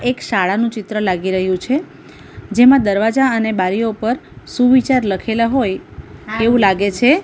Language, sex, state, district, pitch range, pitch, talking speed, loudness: Gujarati, female, Gujarat, Valsad, 200-250 Hz, 225 Hz, 140 wpm, -16 LUFS